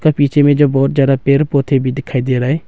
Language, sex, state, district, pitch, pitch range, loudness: Hindi, male, Arunachal Pradesh, Longding, 140 Hz, 135-145 Hz, -13 LUFS